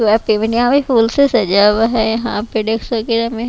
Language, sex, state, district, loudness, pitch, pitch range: Hindi, female, Bihar, West Champaran, -14 LUFS, 225 Hz, 220-235 Hz